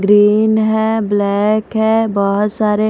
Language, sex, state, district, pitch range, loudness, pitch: Hindi, female, Maharashtra, Mumbai Suburban, 205-220 Hz, -14 LUFS, 210 Hz